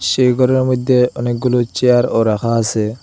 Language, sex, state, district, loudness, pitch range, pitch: Bengali, male, Assam, Hailakandi, -15 LUFS, 115-125 Hz, 125 Hz